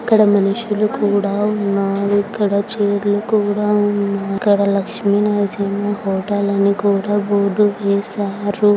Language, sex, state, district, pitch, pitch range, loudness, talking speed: Telugu, female, Andhra Pradesh, Anantapur, 205 Hz, 200-210 Hz, -17 LUFS, 115 wpm